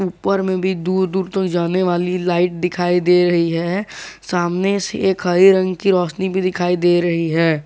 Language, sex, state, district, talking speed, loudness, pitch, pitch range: Hindi, male, Jharkhand, Garhwa, 195 wpm, -17 LUFS, 180 Hz, 175-190 Hz